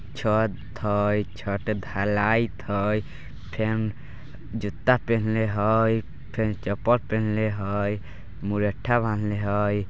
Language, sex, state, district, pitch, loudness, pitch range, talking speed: Bajjika, male, Bihar, Vaishali, 105 Hz, -25 LUFS, 100-110 Hz, 95 wpm